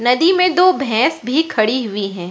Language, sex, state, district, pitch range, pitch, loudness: Hindi, female, Bihar, Katihar, 215-340 Hz, 250 Hz, -15 LUFS